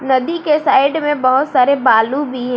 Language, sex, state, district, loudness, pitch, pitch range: Hindi, female, Jharkhand, Garhwa, -14 LUFS, 270 Hz, 255-295 Hz